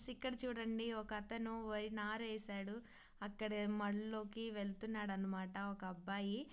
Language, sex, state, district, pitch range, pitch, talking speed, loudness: Telugu, female, Andhra Pradesh, Krishna, 200-225 Hz, 215 Hz, 145 wpm, -45 LUFS